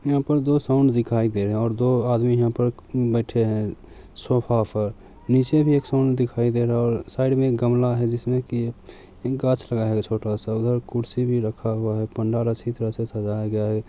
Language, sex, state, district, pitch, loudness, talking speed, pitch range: Maithili, male, Bihar, Samastipur, 120 Hz, -23 LUFS, 215 wpm, 110-125 Hz